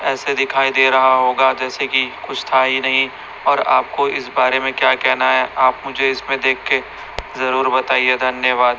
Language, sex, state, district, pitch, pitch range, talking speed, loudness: Hindi, male, Chhattisgarh, Raipur, 130 Hz, 130-135 Hz, 185 wpm, -16 LUFS